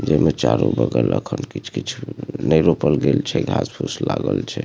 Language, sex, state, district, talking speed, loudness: Maithili, male, Bihar, Supaul, 155 wpm, -20 LUFS